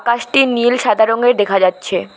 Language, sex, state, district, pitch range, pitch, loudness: Bengali, female, West Bengal, Alipurduar, 195-245 Hz, 235 Hz, -14 LUFS